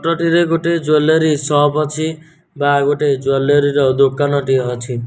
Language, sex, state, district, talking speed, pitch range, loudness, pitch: Odia, male, Odisha, Nuapada, 140 wpm, 140-160 Hz, -15 LUFS, 145 Hz